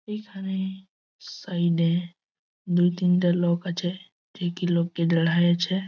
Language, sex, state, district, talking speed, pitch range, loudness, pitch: Bengali, male, West Bengal, Malda, 90 wpm, 175-190 Hz, -25 LUFS, 175 Hz